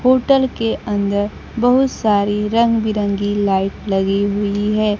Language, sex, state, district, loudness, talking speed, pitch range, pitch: Hindi, female, Bihar, Kaimur, -17 LUFS, 130 wpm, 200-230 Hz, 210 Hz